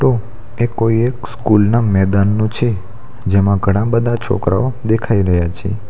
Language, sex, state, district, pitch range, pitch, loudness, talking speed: Gujarati, male, Gujarat, Valsad, 100-115 Hz, 110 Hz, -16 LUFS, 140 wpm